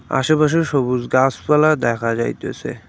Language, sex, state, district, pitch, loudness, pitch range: Bengali, male, West Bengal, Cooch Behar, 135 Hz, -18 LUFS, 125-155 Hz